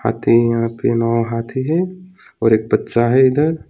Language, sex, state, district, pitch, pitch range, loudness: Hindi, male, West Bengal, Alipurduar, 115 Hz, 115-145 Hz, -17 LUFS